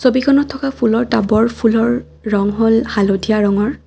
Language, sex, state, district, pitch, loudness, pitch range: Assamese, female, Assam, Kamrup Metropolitan, 225 Hz, -15 LUFS, 215-250 Hz